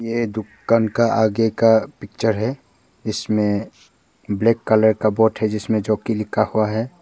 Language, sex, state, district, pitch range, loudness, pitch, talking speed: Hindi, male, Arunachal Pradesh, Papum Pare, 110-115 Hz, -19 LUFS, 110 Hz, 160 wpm